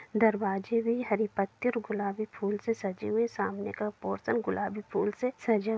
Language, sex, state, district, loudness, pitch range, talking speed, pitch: Hindi, female, Bihar, Gopalganj, -31 LUFS, 205-230 Hz, 185 wpm, 215 Hz